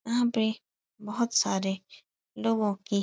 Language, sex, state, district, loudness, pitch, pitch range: Hindi, female, Uttar Pradesh, Etah, -29 LUFS, 220 Hz, 200-235 Hz